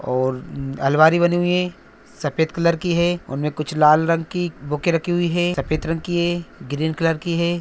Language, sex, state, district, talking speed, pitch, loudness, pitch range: Hindi, male, Bihar, Araria, 205 wpm, 165 Hz, -20 LUFS, 150-175 Hz